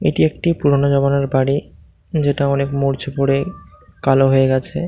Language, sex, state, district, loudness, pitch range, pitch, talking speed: Bengali, male, West Bengal, Malda, -17 LUFS, 130-140 Hz, 135 Hz, 160 wpm